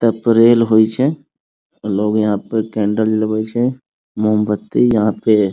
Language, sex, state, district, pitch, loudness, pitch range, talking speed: Maithili, male, Bihar, Muzaffarpur, 110 Hz, -16 LUFS, 105-115 Hz, 150 wpm